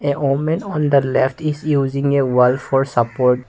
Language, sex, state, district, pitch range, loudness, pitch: English, male, Assam, Kamrup Metropolitan, 130-145 Hz, -17 LUFS, 135 Hz